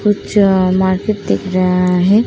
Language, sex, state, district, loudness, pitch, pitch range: Hindi, female, Uttar Pradesh, Muzaffarnagar, -14 LUFS, 190 Hz, 185-205 Hz